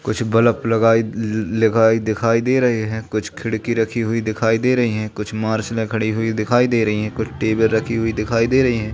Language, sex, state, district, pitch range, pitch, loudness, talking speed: Hindi, male, Madhya Pradesh, Katni, 110-115 Hz, 110 Hz, -18 LUFS, 215 wpm